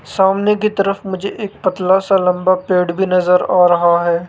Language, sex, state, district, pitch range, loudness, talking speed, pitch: Hindi, male, Rajasthan, Jaipur, 180-195 Hz, -15 LUFS, 195 wpm, 185 Hz